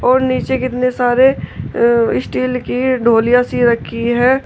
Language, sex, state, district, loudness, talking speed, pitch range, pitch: Hindi, female, Uttar Pradesh, Shamli, -14 LUFS, 150 wpm, 235-255 Hz, 245 Hz